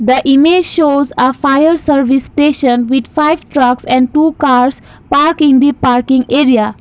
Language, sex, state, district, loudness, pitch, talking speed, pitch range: English, female, Assam, Kamrup Metropolitan, -11 LUFS, 275 Hz, 160 wpm, 255-300 Hz